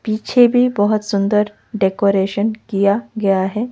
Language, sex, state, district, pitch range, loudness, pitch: Hindi, female, Odisha, Malkangiri, 200-225 Hz, -16 LUFS, 210 Hz